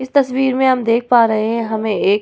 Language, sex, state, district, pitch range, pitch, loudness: Hindi, female, Bihar, Vaishali, 220-260 Hz, 235 Hz, -15 LUFS